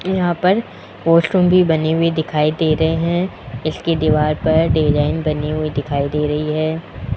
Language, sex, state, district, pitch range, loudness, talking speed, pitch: Hindi, male, Rajasthan, Jaipur, 150-165 Hz, -17 LUFS, 165 wpm, 155 Hz